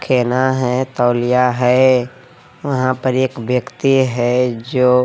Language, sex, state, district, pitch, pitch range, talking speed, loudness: Hindi, male, Bihar, Katihar, 125 Hz, 125-130 Hz, 120 wpm, -16 LUFS